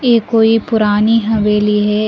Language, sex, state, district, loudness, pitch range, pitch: Hindi, female, Delhi, New Delhi, -13 LUFS, 210-225 Hz, 220 Hz